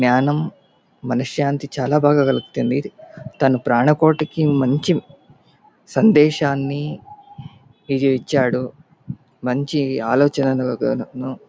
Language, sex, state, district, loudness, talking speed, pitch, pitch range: Telugu, male, Andhra Pradesh, Anantapur, -19 LUFS, 75 wpm, 140 Hz, 130-150 Hz